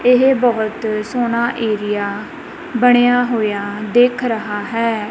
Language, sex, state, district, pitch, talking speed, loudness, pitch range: Punjabi, female, Punjab, Kapurthala, 230 Hz, 105 wpm, -16 LUFS, 210-245 Hz